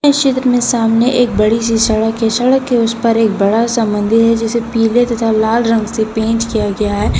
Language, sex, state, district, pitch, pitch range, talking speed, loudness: Hindi, female, Jharkhand, Deoghar, 225 Hz, 220-235 Hz, 235 wpm, -13 LUFS